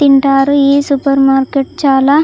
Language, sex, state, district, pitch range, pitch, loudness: Telugu, female, Andhra Pradesh, Chittoor, 275-280 Hz, 275 Hz, -11 LUFS